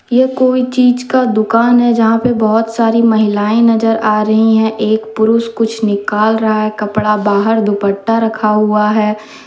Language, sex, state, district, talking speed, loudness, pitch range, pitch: Hindi, female, Jharkhand, Deoghar, 170 wpm, -12 LUFS, 215-230 Hz, 220 Hz